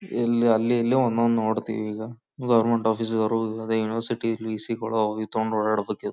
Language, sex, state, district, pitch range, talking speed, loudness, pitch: Kannada, male, Karnataka, Gulbarga, 110-115 Hz, 135 wpm, -24 LUFS, 110 Hz